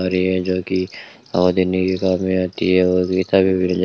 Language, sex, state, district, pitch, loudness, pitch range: Hindi, male, Rajasthan, Bikaner, 95 Hz, -18 LUFS, 90-95 Hz